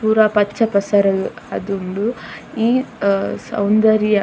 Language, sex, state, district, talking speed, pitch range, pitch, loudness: Tulu, female, Karnataka, Dakshina Kannada, 85 wpm, 200-220 Hz, 210 Hz, -18 LUFS